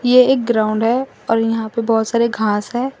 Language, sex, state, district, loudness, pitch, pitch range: Hindi, female, Assam, Sonitpur, -17 LUFS, 230 Hz, 220-250 Hz